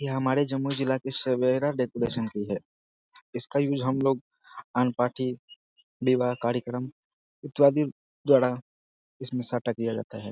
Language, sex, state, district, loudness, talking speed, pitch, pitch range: Hindi, male, Bihar, Jamui, -27 LUFS, 135 wpm, 125 Hz, 120-135 Hz